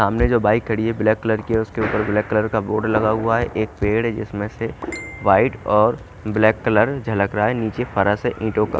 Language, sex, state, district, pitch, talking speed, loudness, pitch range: Hindi, male, Haryana, Charkhi Dadri, 110 Hz, 230 wpm, -20 LUFS, 105-115 Hz